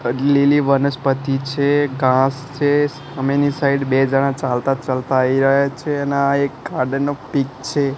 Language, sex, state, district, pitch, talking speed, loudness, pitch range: Gujarati, male, Gujarat, Gandhinagar, 140 Hz, 165 wpm, -18 LUFS, 135-145 Hz